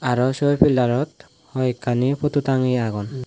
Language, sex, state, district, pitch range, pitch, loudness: Chakma, male, Tripura, West Tripura, 125-140 Hz, 130 Hz, -20 LUFS